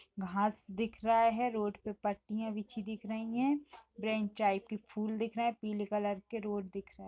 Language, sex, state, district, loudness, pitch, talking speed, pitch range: Hindi, female, Uttar Pradesh, Jalaun, -36 LUFS, 215 Hz, 185 wpm, 205-225 Hz